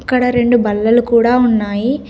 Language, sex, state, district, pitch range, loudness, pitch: Telugu, female, Telangana, Komaram Bheem, 225-245 Hz, -13 LUFS, 240 Hz